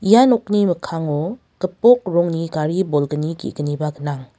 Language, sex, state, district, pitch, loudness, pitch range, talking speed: Garo, female, Meghalaya, West Garo Hills, 165 Hz, -19 LUFS, 150-195 Hz, 125 wpm